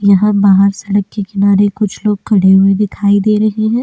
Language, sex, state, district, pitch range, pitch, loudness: Hindi, female, Delhi, New Delhi, 200-210 Hz, 200 Hz, -12 LUFS